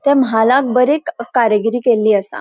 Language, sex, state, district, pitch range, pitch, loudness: Konkani, female, Goa, North and South Goa, 225-265 Hz, 240 Hz, -14 LUFS